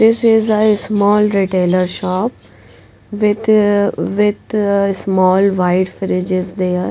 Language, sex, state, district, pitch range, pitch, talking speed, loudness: English, female, Punjab, Pathankot, 185-210 Hz, 200 Hz, 115 wpm, -15 LUFS